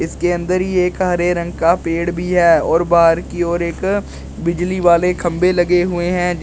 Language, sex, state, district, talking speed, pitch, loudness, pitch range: Hindi, male, Uttar Pradesh, Shamli, 205 wpm, 175 Hz, -16 LUFS, 170-180 Hz